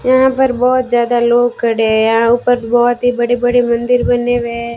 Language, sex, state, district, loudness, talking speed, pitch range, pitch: Hindi, female, Rajasthan, Bikaner, -13 LUFS, 215 wpm, 235-245 Hz, 240 Hz